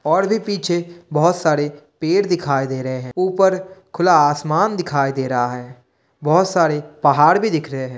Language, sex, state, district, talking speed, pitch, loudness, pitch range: Hindi, male, Bihar, Kishanganj, 180 wpm, 155 Hz, -18 LUFS, 140-180 Hz